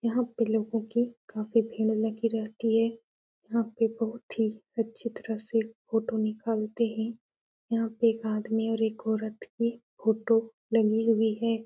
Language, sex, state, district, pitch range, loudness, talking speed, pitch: Hindi, female, Uttar Pradesh, Etah, 220-230 Hz, -29 LUFS, 160 wpm, 225 Hz